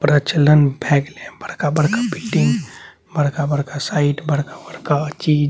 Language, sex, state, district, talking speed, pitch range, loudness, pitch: Maithili, male, Bihar, Saharsa, 130 wpm, 145-150 Hz, -18 LUFS, 145 Hz